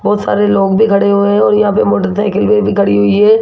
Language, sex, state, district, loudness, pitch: Hindi, female, Rajasthan, Jaipur, -11 LUFS, 200 Hz